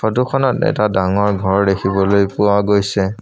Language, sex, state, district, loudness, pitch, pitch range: Assamese, male, Assam, Sonitpur, -15 LUFS, 100 Hz, 95-110 Hz